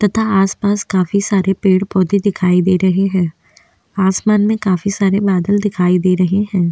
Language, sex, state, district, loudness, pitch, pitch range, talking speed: Hindi, female, Chhattisgarh, Bastar, -15 LUFS, 195 Hz, 185-200 Hz, 160 wpm